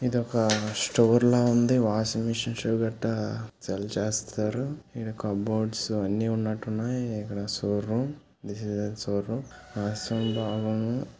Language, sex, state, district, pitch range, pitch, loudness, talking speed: Telugu, male, Andhra Pradesh, Visakhapatnam, 105-120 Hz, 110 Hz, -28 LUFS, 95 wpm